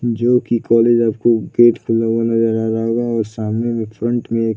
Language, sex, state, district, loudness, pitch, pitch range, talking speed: Hindi, male, Bihar, Saran, -16 LUFS, 115 Hz, 115-120 Hz, 235 wpm